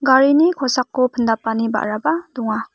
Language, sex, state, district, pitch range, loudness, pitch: Garo, female, Meghalaya, West Garo Hills, 225-275 Hz, -18 LUFS, 255 Hz